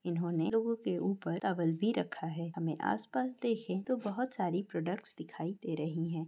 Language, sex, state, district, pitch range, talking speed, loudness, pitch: Hindi, female, Chhattisgarh, Korba, 165-225 Hz, 180 wpm, -35 LUFS, 180 Hz